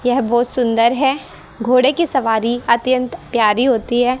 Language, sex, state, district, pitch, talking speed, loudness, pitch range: Hindi, female, Haryana, Jhajjar, 245 Hz, 155 wpm, -16 LUFS, 230-255 Hz